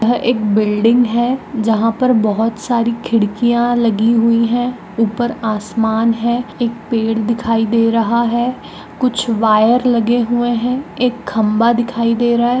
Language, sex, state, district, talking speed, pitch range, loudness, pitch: Magahi, female, Bihar, Gaya, 150 wpm, 225-240 Hz, -15 LUFS, 230 Hz